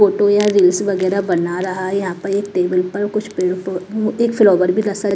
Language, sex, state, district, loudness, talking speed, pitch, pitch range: Hindi, female, Maharashtra, Mumbai Suburban, -17 LUFS, 200 wpm, 195 Hz, 185-205 Hz